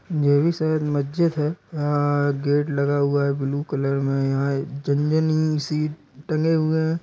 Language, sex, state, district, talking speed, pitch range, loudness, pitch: Hindi, male, Uttar Pradesh, Deoria, 170 wpm, 140-155 Hz, -22 LUFS, 145 Hz